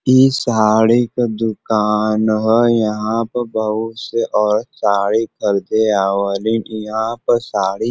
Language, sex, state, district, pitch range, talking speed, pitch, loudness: Bhojpuri, male, Uttar Pradesh, Varanasi, 105-115 Hz, 135 wpm, 110 Hz, -16 LUFS